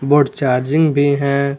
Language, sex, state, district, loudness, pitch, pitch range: Hindi, male, Jharkhand, Garhwa, -15 LUFS, 140 Hz, 140-145 Hz